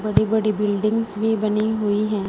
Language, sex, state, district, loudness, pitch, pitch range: Hindi, female, Punjab, Fazilka, -21 LUFS, 215 Hz, 210-220 Hz